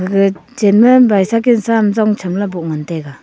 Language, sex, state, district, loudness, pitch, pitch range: Wancho, female, Arunachal Pradesh, Longding, -13 LUFS, 205 Hz, 180-225 Hz